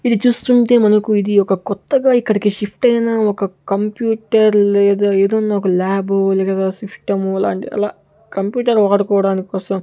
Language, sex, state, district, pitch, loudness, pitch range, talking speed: Telugu, male, Andhra Pradesh, Sri Satya Sai, 205 Hz, -15 LUFS, 195-220 Hz, 140 wpm